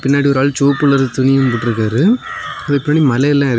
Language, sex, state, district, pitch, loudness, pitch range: Tamil, male, Tamil Nadu, Kanyakumari, 140 Hz, -14 LUFS, 130-145 Hz